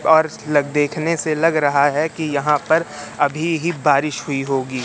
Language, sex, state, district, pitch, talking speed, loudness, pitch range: Hindi, male, Madhya Pradesh, Katni, 150 Hz, 175 wpm, -18 LUFS, 140-160 Hz